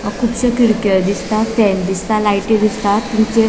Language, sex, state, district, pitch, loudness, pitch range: Konkani, female, Goa, North and South Goa, 215 Hz, -15 LUFS, 200-225 Hz